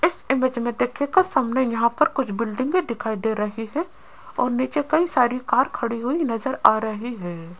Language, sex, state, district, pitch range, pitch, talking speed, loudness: Hindi, female, Rajasthan, Jaipur, 230-285 Hz, 250 Hz, 195 wpm, -22 LUFS